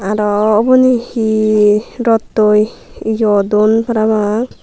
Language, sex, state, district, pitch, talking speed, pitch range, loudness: Chakma, female, Tripura, Dhalai, 215 Hz, 90 wpm, 210-225 Hz, -13 LUFS